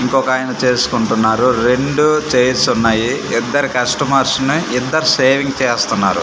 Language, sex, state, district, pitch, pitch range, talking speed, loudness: Telugu, male, Andhra Pradesh, Manyam, 130 Hz, 125-140 Hz, 105 wpm, -14 LUFS